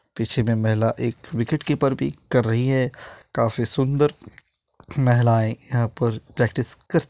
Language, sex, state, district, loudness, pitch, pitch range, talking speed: Hindi, male, Bihar, Purnia, -22 LUFS, 120 Hz, 115-135 Hz, 150 wpm